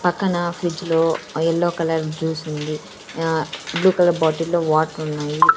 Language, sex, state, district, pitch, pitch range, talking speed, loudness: Telugu, female, Andhra Pradesh, Sri Satya Sai, 165 Hz, 155-175 Hz, 160 wpm, -21 LUFS